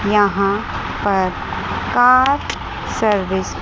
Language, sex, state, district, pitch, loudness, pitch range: Hindi, female, Chandigarh, Chandigarh, 205 Hz, -17 LUFS, 195-220 Hz